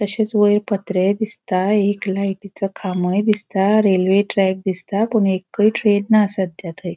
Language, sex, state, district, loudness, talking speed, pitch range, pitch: Konkani, female, Goa, North and South Goa, -18 LUFS, 145 wpm, 190-210 Hz, 200 Hz